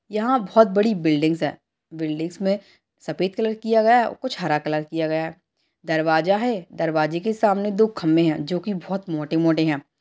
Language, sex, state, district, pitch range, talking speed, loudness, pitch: Hindi, female, Bihar, Jamui, 160-215 Hz, 190 wpm, -22 LUFS, 170 Hz